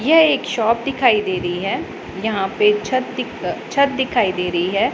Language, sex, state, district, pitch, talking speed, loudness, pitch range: Hindi, female, Punjab, Pathankot, 220 Hz, 205 wpm, -18 LUFS, 195-255 Hz